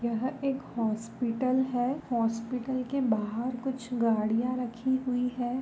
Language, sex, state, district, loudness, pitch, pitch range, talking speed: Hindi, female, Goa, North and South Goa, -30 LUFS, 250 Hz, 230-260 Hz, 130 wpm